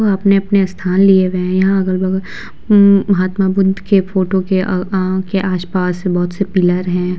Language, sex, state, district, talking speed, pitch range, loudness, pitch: Hindi, female, Bihar, Vaishali, 185 wpm, 185-195 Hz, -14 LUFS, 190 Hz